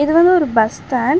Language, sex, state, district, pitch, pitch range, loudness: Tamil, female, Tamil Nadu, Chennai, 290 Hz, 245-340 Hz, -15 LUFS